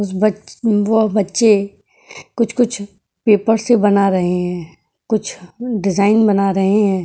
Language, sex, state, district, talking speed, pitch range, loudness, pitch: Hindi, female, Uttar Pradesh, Etah, 120 wpm, 195-220 Hz, -16 LUFS, 205 Hz